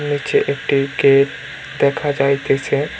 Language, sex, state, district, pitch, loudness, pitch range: Bengali, male, West Bengal, Cooch Behar, 140 Hz, -17 LUFS, 140-145 Hz